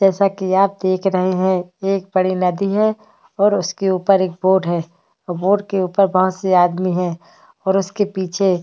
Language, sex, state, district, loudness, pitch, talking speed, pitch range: Hindi, female, Maharashtra, Chandrapur, -18 LUFS, 190 Hz, 195 wpm, 185-195 Hz